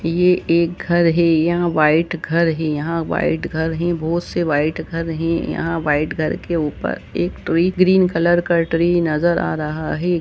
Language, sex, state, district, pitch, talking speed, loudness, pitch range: Hindi, male, Jharkhand, Jamtara, 165 Hz, 190 wpm, -18 LUFS, 160-170 Hz